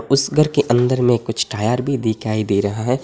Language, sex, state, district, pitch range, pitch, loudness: Hindi, male, Assam, Hailakandi, 110-135 Hz, 120 Hz, -18 LUFS